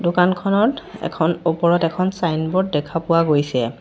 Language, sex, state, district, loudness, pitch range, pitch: Assamese, female, Assam, Sonitpur, -19 LUFS, 160-185 Hz, 170 Hz